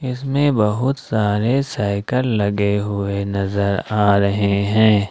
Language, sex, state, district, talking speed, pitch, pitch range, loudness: Hindi, male, Jharkhand, Ranchi, 115 wpm, 105 Hz, 100-125 Hz, -18 LUFS